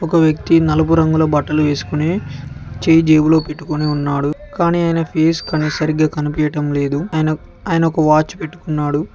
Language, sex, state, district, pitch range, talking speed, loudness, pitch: Telugu, male, Telangana, Mahabubabad, 150-165 Hz, 145 wpm, -16 LUFS, 155 Hz